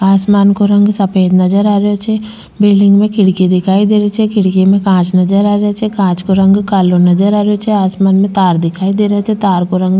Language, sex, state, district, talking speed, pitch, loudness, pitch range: Rajasthani, female, Rajasthan, Churu, 240 wpm, 200 Hz, -11 LUFS, 190-205 Hz